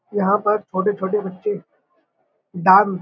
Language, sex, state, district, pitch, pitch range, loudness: Hindi, male, Uttar Pradesh, Budaun, 200 Hz, 190-210 Hz, -19 LUFS